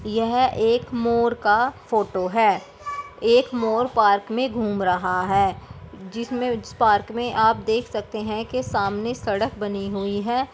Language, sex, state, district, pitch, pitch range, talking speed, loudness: Hindi, female, Bihar, Begusarai, 225 Hz, 205-240 Hz, 150 wpm, -22 LUFS